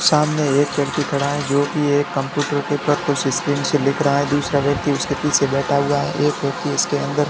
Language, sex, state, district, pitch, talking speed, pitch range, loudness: Hindi, male, Rajasthan, Barmer, 145 Hz, 240 wpm, 140-145 Hz, -19 LUFS